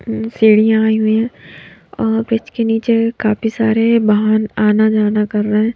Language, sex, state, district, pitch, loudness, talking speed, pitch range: Hindi, female, Maharashtra, Mumbai Suburban, 220 Hz, -14 LUFS, 165 wpm, 215-225 Hz